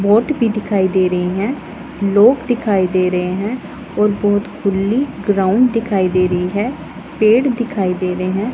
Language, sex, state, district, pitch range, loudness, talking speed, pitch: Hindi, female, Punjab, Pathankot, 185-230 Hz, -16 LUFS, 170 wpm, 205 Hz